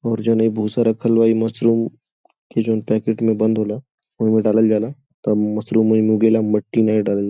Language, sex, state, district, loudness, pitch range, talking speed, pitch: Bhojpuri, male, Uttar Pradesh, Gorakhpur, -18 LUFS, 110-115 Hz, 220 wpm, 110 Hz